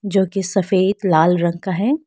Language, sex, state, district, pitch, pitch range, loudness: Hindi, female, Arunachal Pradesh, Lower Dibang Valley, 190 Hz, 180-200 Hz, -18 LUFS